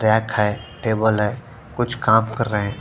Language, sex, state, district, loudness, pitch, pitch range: Hindi, female, Punjab, Fazilka, -20 LUFS, 110 Hz, 105-115 Hz